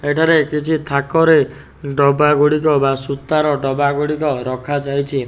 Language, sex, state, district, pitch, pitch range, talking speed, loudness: Odia, male, Odisha, Nuapada, 145 Hz, 140-150 Hz, 90 wpm, -16 LUFS